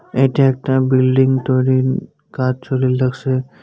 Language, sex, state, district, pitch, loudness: Bengali, male, West Bengal, Cooch Behar, 130 Hz, -16 LUFS